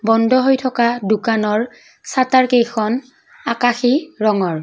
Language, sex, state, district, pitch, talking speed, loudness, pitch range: Assamese, female, Assam, Kamrup Metropolitan, 240 Hz, 90 wpm, -17 LUFS, 220-260 Hz